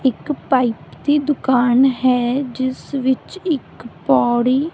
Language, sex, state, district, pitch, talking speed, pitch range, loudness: Punjabi, female, Punjab, Kapurthala, 260 Hz, 125 wpm, 250-285 Hz, -18 LUFS